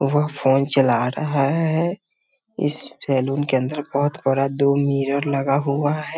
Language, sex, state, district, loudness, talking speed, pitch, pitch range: Hindi, male, Bihar, Muzaffarpur, -21 LUFS, 155 wpm, 140 Hz, 135-150 Hz